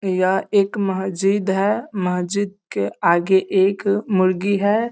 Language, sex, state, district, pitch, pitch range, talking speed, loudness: Hindi, male, Bihar, East Champaran, 195 Hz, 185-200 Hz, 135 wpm, -19 LUFS